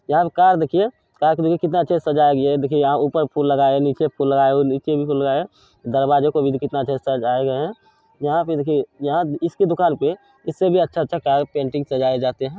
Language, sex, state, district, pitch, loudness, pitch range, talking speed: Maithili, male, Bihar, Supaul, 145 Hz, -19 LUFS, 140-170 Hz, 260 wpm